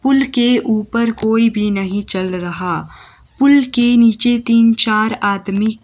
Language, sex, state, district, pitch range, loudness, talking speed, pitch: Hindi, female, Himachal Pradesh, Shimla, 205-240 Hz, -14 LUFS, 145 wpm, 225 Hz